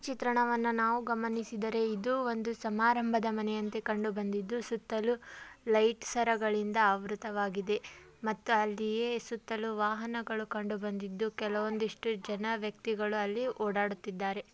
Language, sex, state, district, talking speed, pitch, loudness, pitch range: Kannada, female, Karnataka, Dharwad, 85 wpm, 220 Hz, -33 LUFS, 210-230 Hz